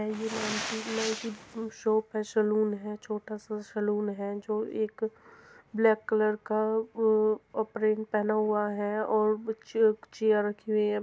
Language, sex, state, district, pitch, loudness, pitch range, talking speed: Hindi, female, Uttar Pradesh, Muzaffarnagar, 215 Hz, -29 LUFS, 210-220 Hz, 120 wpm